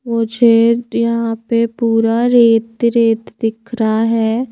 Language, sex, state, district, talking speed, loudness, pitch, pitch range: Hindi, female, Madhya Pradesh, Bhopal, 105 wpm, -14 LUFS, 230 Hz, 225-235 Hz